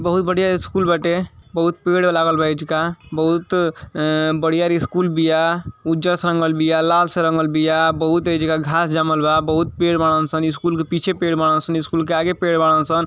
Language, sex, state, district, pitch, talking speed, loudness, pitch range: Bhojpuri, male, Uttar Pradesh, Ghazipur, 165 Hz, 200 wpm, -18 LUFS, 160-170 Hz